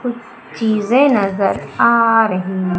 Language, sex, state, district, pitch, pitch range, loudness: Hindi, female, Madhya Pradesh, Umaria, 225 Hz, 195-235 Hz, -15 LUFS